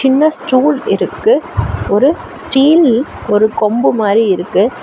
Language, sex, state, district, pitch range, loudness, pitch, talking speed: Tamil, female, Tamil Nadu, Chennai, 225-305 Hz, -12 LUFS, 265 Hz, 110 wpm